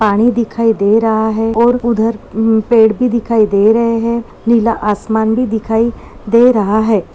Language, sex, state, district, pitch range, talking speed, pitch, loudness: Hindi, female, Maharashtra, Nagpur, 220-235 Hz, 175 wpm, 225 Hz, -13 LUFS